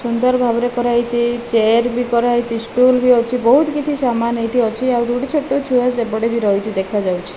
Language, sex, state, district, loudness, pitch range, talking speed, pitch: Odia, female, Odisha, Malkangiri, -16 LUFS, 230-250 Hz, 195 wpm, 240 Hz